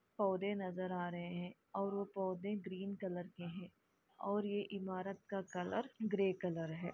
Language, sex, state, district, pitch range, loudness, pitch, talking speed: Hindi, female, Chhattisgarh, Bastar, 180-200 Hz, -42 LUFS, 190 Hz, 175 wpm